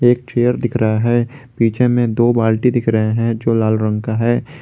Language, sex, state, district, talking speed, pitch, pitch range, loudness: Hindi, male, Jharkhand, Garhwa, 220 wpm, 120 Hz, 110-120 Hz, -16 LUFS